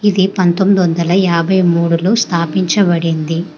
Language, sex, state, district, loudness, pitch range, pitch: Telugu, female, Telangana, Hyderabad, -13 LUFS, 170-190 Hz, 175 Hz